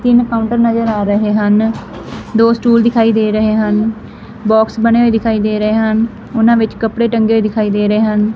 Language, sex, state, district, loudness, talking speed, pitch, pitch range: Punjabi, female, Punjab, Fazilka, -13 LUFS, 200 wpm, 220 Hz, 215-230 Hz